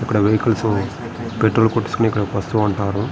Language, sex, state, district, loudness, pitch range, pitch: Telugu, male, Andhra Pradesh, Srikakulam, -19 LUFS, 105-115 Hz, 110 Hz